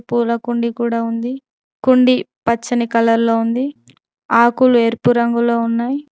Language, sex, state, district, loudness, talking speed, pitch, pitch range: Telugu, female, Telangana, Mahabubabad, -16 LUFS, 120 wpm, 235 Hz, 230-245 Hz